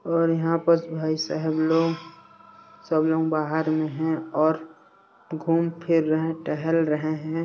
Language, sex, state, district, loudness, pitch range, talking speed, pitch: Hindi, male, Chhattisgarh, Sarguja, -24 LUFS, 155-165 Hz, 135 wpm, 160 Hz